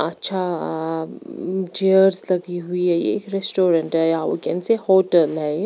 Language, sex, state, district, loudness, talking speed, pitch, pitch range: Hindi, female, Bihar, Patna, -19 LUFS, 160 wpm, 180 Hz, 165-190 Hz